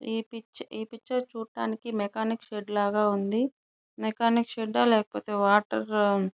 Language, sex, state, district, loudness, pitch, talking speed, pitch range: Telugu, female, Andhra Pradesh, Chittoor, -28 LUFS, 220 Hz, 140 wpm, 205-230 Hz